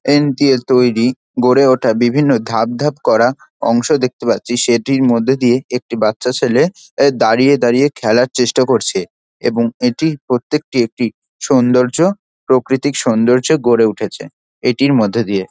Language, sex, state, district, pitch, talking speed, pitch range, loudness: Bengali, male, West Bengal, Dakshin Dinajpur, 125 Hz, 135 wpm, 120-140 Hz, -14 LUFS